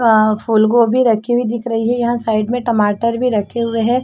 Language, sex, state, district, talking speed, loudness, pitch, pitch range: Hindi, female, Chhattisgarh, Bastar, 240 wpm, -15 LUFS, 230 Hz, 220-240 Hz